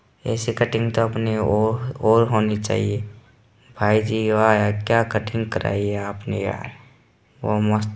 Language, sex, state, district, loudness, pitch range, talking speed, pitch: Hindi, male, Bihar, Samastipur, -21 LUFS, 105-115 Hz, 150 wpm, 110 Hz